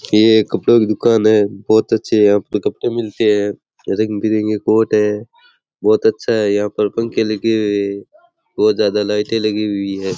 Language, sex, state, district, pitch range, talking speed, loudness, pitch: Rajasthani, male, Rajasthan, Churu, 105-115 Hz, 185 wpm, -16 LUFS, 110 Hz